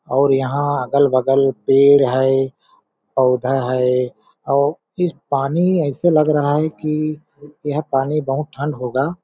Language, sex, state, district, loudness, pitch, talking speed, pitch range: Hindi, male, Chhattisgarh, Balrampur, -18 LUFS, 140 Hz, 130 wpm, 135-150 Hz